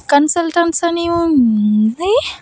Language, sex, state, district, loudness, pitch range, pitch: Telugu, female, Andhra Pradesh, Annamaya, -14 LUFS, 265-340 Hz, 335 Hz